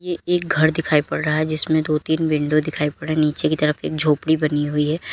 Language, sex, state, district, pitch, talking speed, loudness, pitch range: Hindi, female, Uttar Pradesh, Lalitpur, 155 Hz, 270 wpm, -20 LUFS, 150-160 Hz